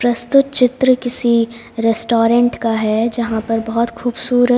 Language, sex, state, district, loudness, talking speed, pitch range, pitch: Hindi, female, Haryana, Jhajjar, -16 LUFS, 130 wpm, 230-245 Hz, 235 Hz